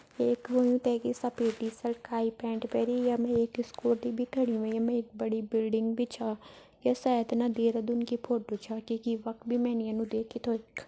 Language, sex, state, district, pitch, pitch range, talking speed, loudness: Garhwali, female, Uttarakhand, Tehri Garhwal, 235 Hz, 225-240 Hz, 210 wpm, -31 LUFS